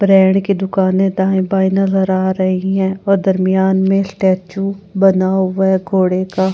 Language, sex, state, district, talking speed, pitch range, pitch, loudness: Hindi, female, Delhi, New Delhi, 175 wpm, 190-195 Hz, 190 Hz, -15 LUFS